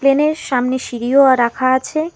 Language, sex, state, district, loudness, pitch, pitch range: Bengali, female, West Bengal, Alipurduar, -15 LUFS, 260 Hz, 250-280 Hz